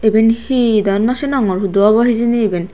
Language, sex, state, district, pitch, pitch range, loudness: Chakma, female, Tripura, Unakoti, 220 Hz, 200-235 Hz, -14 LUFS